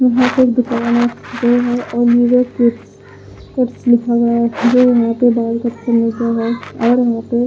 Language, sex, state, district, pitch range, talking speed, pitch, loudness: Hindi, female, Punjab, Pathankot, 235-245 Hz, 105 wpm, 240 Hz, -14 LUFS